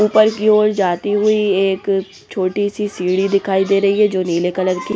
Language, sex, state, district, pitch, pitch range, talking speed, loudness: Hindi, female, Punjab, Pathankot, 200 Hz, 190-210 Hz, 220 wpm, -16 LUFS